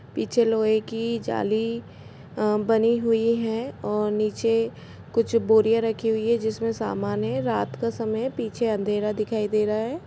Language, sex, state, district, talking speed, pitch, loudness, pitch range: Hindi, female, Chhattisgarh, Kabirdham, 160 wpm, 225 Hz, -24 LUFS, 215-230 Hz